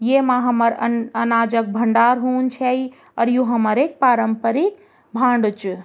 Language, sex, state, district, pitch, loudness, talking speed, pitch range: Garhwali, female, Uttarakhand, Tehri Garhwal, 240 Hz, -18 LUFS, 155 wpm, 230-255 Hz